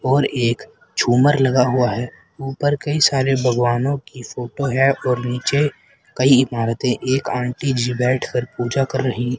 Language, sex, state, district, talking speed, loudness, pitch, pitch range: Hindi, male, Haryana, Rohtak, 160 wpm, -19 LUFS, 130 Hz, 125-135 Hz